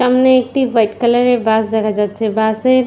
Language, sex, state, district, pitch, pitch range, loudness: Bengali, female, West Bengal, Purulia, 235 Hz, 220-255 Hz, -14 LUFS